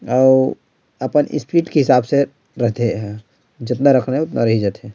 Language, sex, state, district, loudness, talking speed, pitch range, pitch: Chhattisgarhi, male, Chhattisgarh, Rajnandgaon, -17 LUFS, 180 wpm, 115-140 Hz, 130 Hz